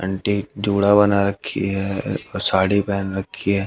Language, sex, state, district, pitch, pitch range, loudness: Hindi, male, Haryana, Jhajjar, 100 Hz, 95-100 Hz, -20 LUFS